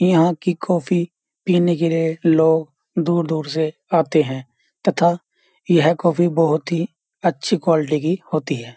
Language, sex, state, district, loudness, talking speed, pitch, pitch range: Hindi, male, Uttar Pradesh, Jyotiba Phule Nagar, -19 LUFS, 145 wpm, 165 Hz, 160-175 Hz